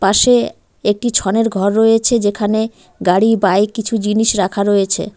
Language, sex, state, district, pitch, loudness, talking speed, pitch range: Bengali, female, West Bengal, Cooch Behar, 210 Hz, -14 LUFS, 140 wpm, 200-225 Hz